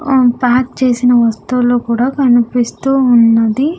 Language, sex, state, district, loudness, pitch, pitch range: Telugu, female, Andhra Pradesh, Sri Satya Sai, -12 LUFS, 245 Hz, 240-260 Hz